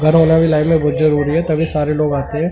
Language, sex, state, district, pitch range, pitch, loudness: Hindi, male, Delhi, New Delhi, 150-160 Hz, 155 Hz, -15 LUFS